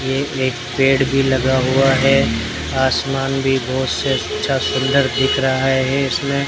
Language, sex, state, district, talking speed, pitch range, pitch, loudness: Hindi, male, Rajasthan, Bikaner, 150 wpm, 130-135 Hz, 135 Hz, -17 LUFS